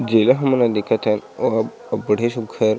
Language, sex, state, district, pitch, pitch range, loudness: Chhattisgarhi, male, Chhattisgarh, Sarguja, 115 Hz, 105-120 Hz, -19 LUFS